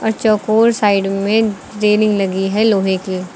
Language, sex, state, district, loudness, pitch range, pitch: Hindi, female, Uttar Pradesh, Lucknow, -15 LUFS, 195-215 Hz, 210 Hz